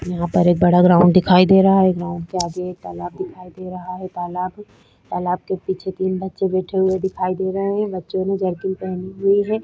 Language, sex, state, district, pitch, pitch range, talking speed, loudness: Hindi, female, Uttarakhand, Tehri Garhwal, 185 Hz, 180-190 Hz, 230 wpm, -19 LUFS